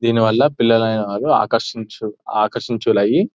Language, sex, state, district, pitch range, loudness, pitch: Telugu, male, Telangana, Nalgonda, 110-115 Hz, -17 LUFS, 110 Hz